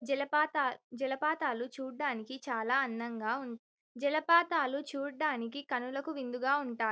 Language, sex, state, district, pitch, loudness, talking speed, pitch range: Telugu, female, Telangana, Karimnagar, 270 Hz, -33 LUFS, 95 wpm, 245-290 Hz